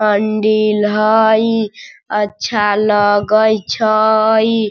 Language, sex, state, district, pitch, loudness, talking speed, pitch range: Hindi, female, Bihar, Sitamarhi, 215 Hz, -13 LUFS, 65 wpm, 210-220 Hz